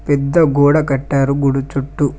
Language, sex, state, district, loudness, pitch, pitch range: Telugu, male, Telangana, Mahabubabad, -15 LUFS, 140 Hz, 135-145 Hz